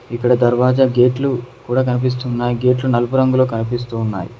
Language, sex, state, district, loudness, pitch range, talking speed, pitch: Telugu, male, Telangana, Mahabubabad, -17 LUFS, 120-130 Hz, 135 wpm, 125 Hz